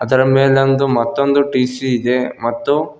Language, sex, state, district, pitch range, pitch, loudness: Kannada, male, Karnataka, Koppal, 125-140 Hz, 130 Hz, -15 LUFS